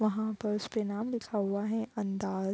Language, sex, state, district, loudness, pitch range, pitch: Hindi, female, Bihar, Gopalganj, -33 LUFS, 200-220 Hz, 215 Hz